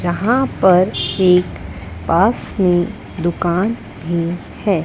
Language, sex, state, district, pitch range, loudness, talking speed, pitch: Hindi, female, Maharashtra, Gondia, 165-190 Hz, -17 LUFS, 100 wpm, 175 Hz